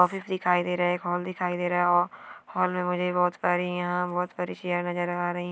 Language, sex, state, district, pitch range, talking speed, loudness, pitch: Hindi, female, Bihar, Sitamarhi, 175-180 Hz, 260 wpm, -27 LUFS, 180 Hz